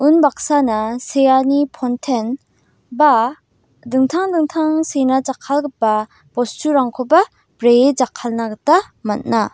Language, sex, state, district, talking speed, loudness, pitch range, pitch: Garo, female, Meghalaya, West Garo Hills, 80 wpm, -16 LUFS, 240-295 Hz, 265 Hz